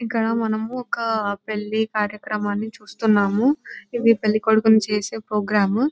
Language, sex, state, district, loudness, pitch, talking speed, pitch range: Telugu, female, Telangana, Nalgonda, -21 LUFS, 220 Hz, 120 wpm, 210-225 Hz